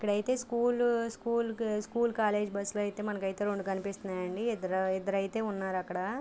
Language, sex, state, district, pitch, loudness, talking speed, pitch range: Telugu, female, Andhra Pradesh, Guntur, 210 Hz, -32 LUFS, 135 wpm, 195-230 Hz